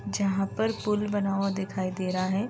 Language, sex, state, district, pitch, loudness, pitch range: Hindi, female, Uttar Pradesh, Deoria, 195 Hz, -28 LUFS, 185-205 Hz